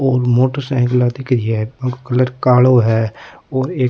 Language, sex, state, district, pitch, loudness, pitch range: Rajasthani, male, Rajasthan, Nagaur, 125 Hz, -16 LUFS, 120-130 Hz